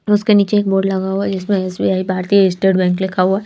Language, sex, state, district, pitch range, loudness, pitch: Hindi, female, Bihar, Patna, 185-200 Hz, -15 LUFS, 195 Hz